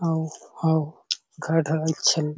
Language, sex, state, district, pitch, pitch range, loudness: Chhattisgarhi, male, Chhattisgarh, Sarguja, 160 Hz, 155-160 Hz, -25 LUFS